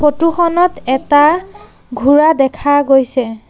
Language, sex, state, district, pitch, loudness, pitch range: Assamese, female, Assam, Sonitpur, 290 Hz, -12 LUFS, 265-330 Hz